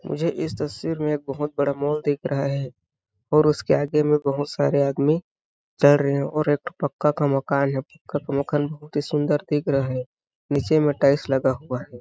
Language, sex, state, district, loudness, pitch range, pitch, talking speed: Hindi, male, Chhattisgarh, Balrampur, -23 LUFS, 140-150 Hz, 145 Hz, 205 wpm